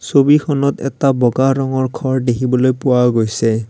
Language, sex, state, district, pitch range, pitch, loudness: Assamese, male, Assam, Kamrup Metropolitan, 125-135 Hz, 130 Hz, -15 LUFS